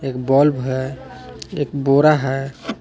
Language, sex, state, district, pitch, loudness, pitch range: Hindi, male, Jharkhand, Palamu, 135 Hz, -18 LUFS, 130-140 Hz